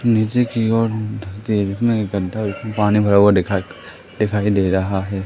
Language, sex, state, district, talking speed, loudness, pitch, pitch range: Hindi, male, Madhya Pradesh, Katni, 160 wpm, -18 LUFS, 105 Hz, 100-110 Hz